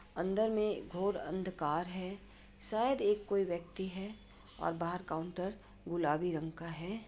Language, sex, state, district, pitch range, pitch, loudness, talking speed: Hindi, female, Bihar, Madhepura, 170-200 Hz, 185 Hz, -37 LUFS, 145 wpm